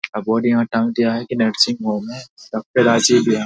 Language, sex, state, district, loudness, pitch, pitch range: Hindi, male, Bihar, Saharsa, -17 LUFS, 115 Hz, 110-120 Hz